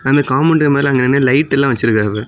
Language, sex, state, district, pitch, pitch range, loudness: Tamil, male, Tamil Nadu, Kanyakumari, 135 Hz, 125-140 Hz, -13 LUFS